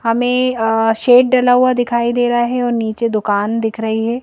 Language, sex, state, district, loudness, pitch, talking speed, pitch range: Hindi, female, Madhya Pradesh, Bhopal, -15 LUFS, 235 Hz, 200 wpm, 225-245 Hz